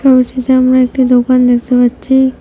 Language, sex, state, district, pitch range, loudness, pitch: Bengali, female, West Bengal, Cooch Behar, 250-260 Hz, -10 LUFS, 255 Hz